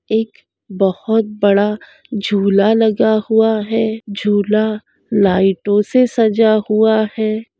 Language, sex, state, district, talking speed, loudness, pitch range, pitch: Hindi, female, Andhra Pradesh, Krishna, 105 wpm, -15 LUFS, 205-220 Hz, 215 Hz